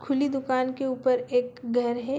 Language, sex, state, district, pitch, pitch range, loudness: Hindi, female, Bihar, Sitamarhi, 255 Hz, 245-270 Hz, -26 LUFS